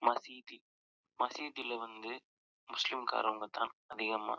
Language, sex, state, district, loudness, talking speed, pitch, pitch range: Tamil, male, Karnataka, Chamarajanagar, -38 LUFS, 80 wpm, 120 Hz, 110-130 Hz